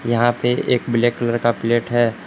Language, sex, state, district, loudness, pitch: Hindi, male, Jharkhand, Palamu, -19 LUFS, 120 Hz